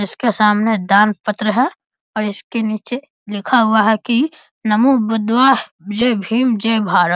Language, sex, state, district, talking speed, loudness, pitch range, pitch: Hindi, male, Bihar, East Champaran, 150 wpm, -16 LUFS, 210-245 Hz, 220 Hz